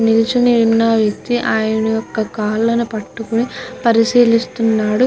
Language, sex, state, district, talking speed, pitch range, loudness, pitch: Telugu, female, Andhra Pradesh, Guntur, 95 wpm, 220-235 Hz, -15 LUFS, 225 Hz